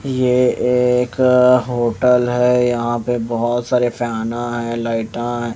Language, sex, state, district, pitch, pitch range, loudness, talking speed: Hindi, male, Bihar, West Champaran, 120 Hz, 120-125 Hz, -17 LUFS, 130 wpm